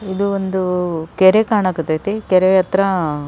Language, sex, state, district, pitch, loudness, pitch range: Kannada, female, Karnataka, Raichur, 190 Hz, -16 LUFS, 180-195 Hz